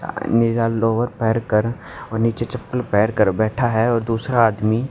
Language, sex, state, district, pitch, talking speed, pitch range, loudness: Hindi, male, Haryana, Jhajjar, 115 Hz, 170 wpm, 110-115 Hz, -19 LUFS